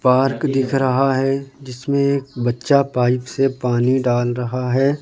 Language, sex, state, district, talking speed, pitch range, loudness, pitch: Hindi, male, Madhya Pradesh, Bhopal, 155 wpm, 125-135 Hz, -18 LUFS, 130 Hz